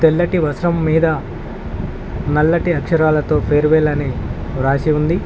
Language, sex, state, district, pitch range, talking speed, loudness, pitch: Telugu, male, Telangana, Mahabubabad, 145-165 Hz, 115 wpm, -17 LUFS, 155 Hz